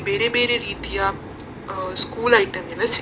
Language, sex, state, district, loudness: Kannada, female, Karnataka, Dakshina Kannada, -19 LUFS